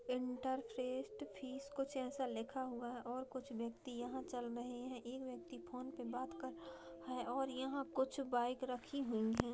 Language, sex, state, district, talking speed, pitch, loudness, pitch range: Hindi, female, Bihar, Begusarai, 185 wpm, 255 Hz, -44 LUFS, 240-265 Hz